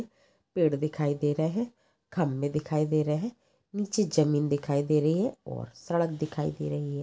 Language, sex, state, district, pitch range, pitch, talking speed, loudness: Hindi, female, Maharashtra, Pune, 145-195 Hz, 155 Hz, 170 wpm, -29 LUFS